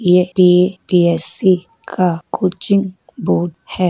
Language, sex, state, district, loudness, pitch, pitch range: Hindi, female, Uttar Pradesh, Hamirpur, -15 LUFS, 180 Hz, 175-185 Hz